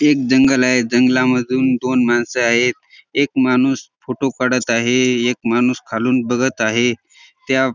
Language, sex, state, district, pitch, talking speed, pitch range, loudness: Marathi, male, Maharashtra, Dhule, 125 Hz, 160 wpm, 120-130 Hz, -16 LUFS